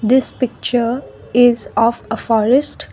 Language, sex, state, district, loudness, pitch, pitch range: English, female, Assam, Kamrup Metropolitan, -16 LUFS, 240 Hz, 230-255 Hz